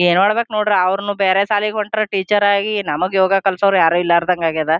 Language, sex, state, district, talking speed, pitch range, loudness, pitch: Kannada, female, Karnataka, Gulbarga, 185 wpm, 180-205 Hz, -16 LUFS, 195 Hz